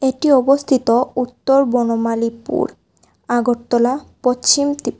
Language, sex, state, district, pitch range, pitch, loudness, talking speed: Bengali, female, Tripura, West Tripura, 240-275 Hz, 250 Hz, -17 LUFS, 85 wpm